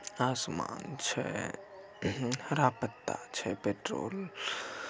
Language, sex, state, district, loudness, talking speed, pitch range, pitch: Maithili, male, Bihar, Samastipur, -35 LUFS, 75 wpm, 120-195 Hz, 125 Hz